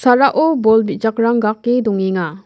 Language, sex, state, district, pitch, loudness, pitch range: Garo, female, Meghalaya, West Garo Hills, 225 Hz, -15 LUFS, 210-245 Hz